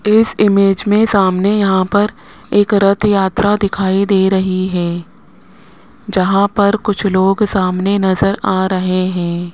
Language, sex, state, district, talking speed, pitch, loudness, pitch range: Hindi, male, Rajasthan, Jaipur, 140 wpm, 195 Hz, -14 LUFS, 185-205 Hz